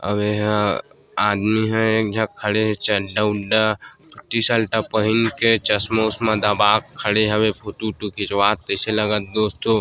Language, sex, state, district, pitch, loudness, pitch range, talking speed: Chhattisgarhi, male, Chhattisgarh, Sarguja, 105 Hz, -20 LUFS, 105-110 Hz, 155 wpm